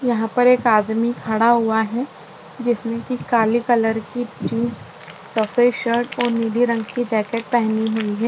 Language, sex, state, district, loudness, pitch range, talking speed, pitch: Hindi, female, Maharashtra, Aurangabad, -19 LUFS, 225-240 Hz, 165 wpm, 230 Hz